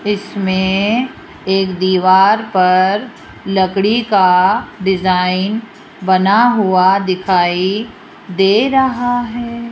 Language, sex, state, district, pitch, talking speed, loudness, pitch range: Hindi, female, Rajasthan, Jaipur, 195 Hz, 80 wpm, -14 LUFS, 185-220 Hz